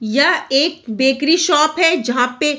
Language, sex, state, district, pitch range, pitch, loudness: Hindi, female, Bihar, Darbhanga, 260-320 Hz, 285 Hz, -15 LUFS